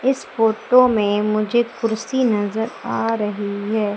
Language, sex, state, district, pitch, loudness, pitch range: Hindi, female, Madhya Pradesh, Umaria, 220 Hz, -19 LUFS, 210-240 Hz